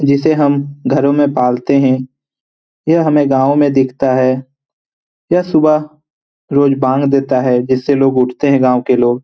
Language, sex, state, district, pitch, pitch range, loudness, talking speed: Hindi, male, Bihar, Lakhisarai, 140 Hz, 130-145 Hz, -13 LUFS, 160 wpm